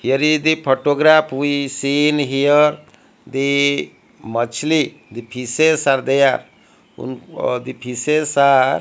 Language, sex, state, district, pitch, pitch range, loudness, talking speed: English, male, Odisha, Malkangiri, 140 Hz, 130-150 Hz, -17 LUFS, 115 wpm